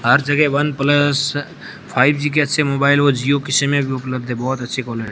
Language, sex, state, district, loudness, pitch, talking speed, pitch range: Hindi, male, Rajasthan, Barmer, -17 LUFS, 140 Hz, 225 wpm, 130-145 Hz